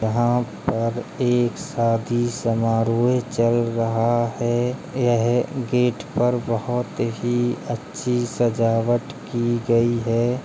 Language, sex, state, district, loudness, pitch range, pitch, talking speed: Hindi, male, Uttar Pradesh, Hamirpur, -22 LUFS, 115-120 Hz, 120 Hz, 105 wpm